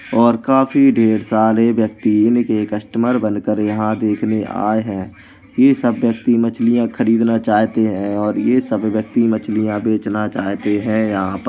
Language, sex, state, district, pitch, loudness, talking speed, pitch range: Hindi, male, Uttar Pradesh, Jalaun, 110 Hz, -16 LUFS, 155 wpm, 105-115 Hz